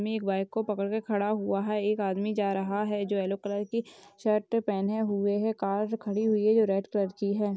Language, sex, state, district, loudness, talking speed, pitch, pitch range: Hindi, female, Chhattisgarh, Rajnandgaon, -29 LUFS, 230 wpm, 205 Hz, 200-215 Hz